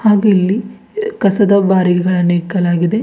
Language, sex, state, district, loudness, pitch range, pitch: Kannada, female, Karnataka, Bidar, -14 LUFS, 180-210 Hz, 195 Hz